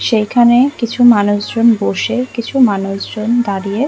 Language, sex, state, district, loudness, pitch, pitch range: Bengali, female, West Bengal, Kolkata, -13 LUFS, 235 Hz, 205-245 Hz